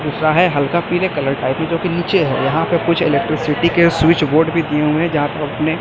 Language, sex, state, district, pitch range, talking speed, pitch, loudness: Hindi, male, Chhattisgarh, Raipur, 150-170 Hz, 260 wpm, 160 Hz, -16 LUFS